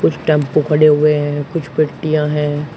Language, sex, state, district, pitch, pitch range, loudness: Hindi, male, Uttar Pradesh, Shamli, 150 Hz, 150-155 Hz, -15 LUFS